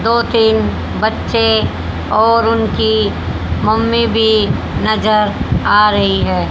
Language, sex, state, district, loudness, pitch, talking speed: Hindi, female, Haryana, Rohtak, -14 LUFS, 215 Hz, 100 wpm